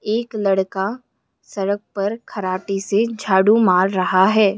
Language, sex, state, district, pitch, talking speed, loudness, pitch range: Hindi, female, Maharashtra, Solapur, 200 Hz, 130 wpm, -19 LUFS, 190-215 Hz